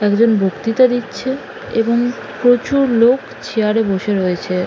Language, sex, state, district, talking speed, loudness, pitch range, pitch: Bengali, female, West Bengal, Malda, 130 wpm, -16 LUFS, 205-245 Hz, 230 Hz